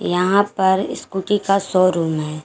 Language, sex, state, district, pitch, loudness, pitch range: Hindi, female, Jharkhand, Garhwa, 190 Hz, -18 LUFS, 175-195 Hz